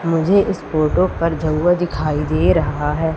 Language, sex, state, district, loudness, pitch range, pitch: Hindi, female, Madhya Pradesh, Umaria, -17 LUFS, 155-175 Hz, 160 Hz